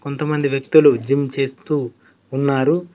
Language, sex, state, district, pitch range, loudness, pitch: Telugu, male, Telangana, Mahabubabad, 135-150 Hz, -18 LUFS, 140 Hz